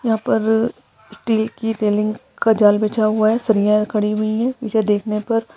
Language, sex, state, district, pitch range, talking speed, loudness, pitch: Hindi, female, Rajasthan, Churu, 210-225 Hz, 195 wpm, -18 LUFS, 220 Hz